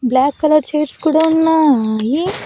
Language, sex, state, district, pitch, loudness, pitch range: Telugu, female, Andhra Pradesh, Annamaya, 300 Hz, -14 LUFS, 260-320 Hz